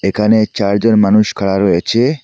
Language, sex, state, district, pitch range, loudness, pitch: Bengali, male, Assam, Hailakandi, 100-110 Hz, -13 LUFS, 105 Hz